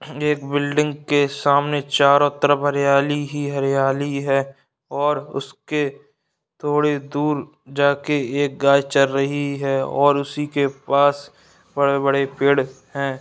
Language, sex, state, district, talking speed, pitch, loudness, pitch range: Hindi, male, Bihar, Purnia, 125 wpm, 140 Hz, -20 LUFS, 140-145 Hz